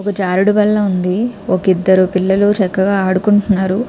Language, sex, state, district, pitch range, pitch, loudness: Telugu, female, Andhra Pradesh, Krishna, 185-205 Hz, 195 Hz, -14 LUFS